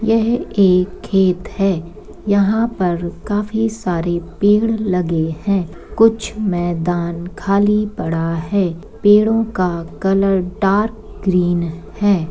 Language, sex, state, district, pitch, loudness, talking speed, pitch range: Magahi, female, Bihar, Gaya, 195 Hz, -17 LUFS, 120 wpm, 175-210 Hz